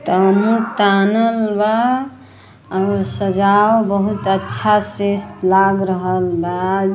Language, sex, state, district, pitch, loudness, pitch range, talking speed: Bhojpuri, female, Uttar Pradesh, Ghazipur, 200 Hz, -16 LUFS, 190-210 Hz, 95 wpm